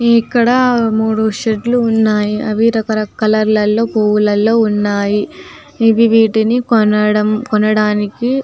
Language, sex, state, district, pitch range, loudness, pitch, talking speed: Telugu, female, Telangana, Nalgonda, 210-230 Hz, -13 LUFS, 220 Hz, 105 wpm